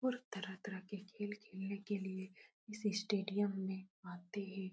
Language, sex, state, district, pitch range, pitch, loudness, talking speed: Hindi, female, Uttar Pradesh, Etah, 190-205 Hz, 200 Hz, -43 LUFS, 180 wpm